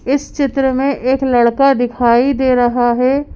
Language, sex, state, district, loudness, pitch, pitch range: Hindi, female, Madhya Pradesh, Bhopal, -14 LUFS, 260 Hz, 245-275 Hz